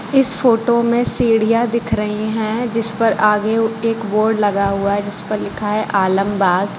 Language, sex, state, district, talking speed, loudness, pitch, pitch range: Hindi, female, Uttar Pradesh, Lucknow, 175 wpm, -17 LUFS, 220 Hz, 205-230 Hz